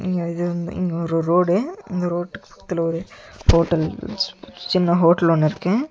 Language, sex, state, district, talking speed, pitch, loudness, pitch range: Tamil, male, Tamil Nadu, Nilgiris, 160 wpm, 175 Hz, -21 LUFS, 170-185 Hz